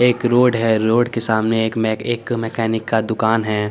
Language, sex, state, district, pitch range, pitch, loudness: Hindi, male, Chandigarh, Chandigarh, 110-120 Hz, 115 Hz, -18 LUFS